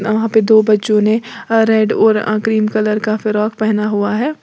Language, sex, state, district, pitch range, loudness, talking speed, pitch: Hindi, female, Uttar Pradesh, Lalitpur, 215-220 Hz, -14 LUFS, 190 wpm, 215 Hz